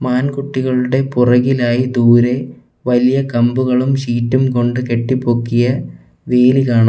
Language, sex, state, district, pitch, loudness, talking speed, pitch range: Malayalam, male, Kerala, Kollam, 125 Hz, -14 LUFS, 85 wpm, 120-130 Hz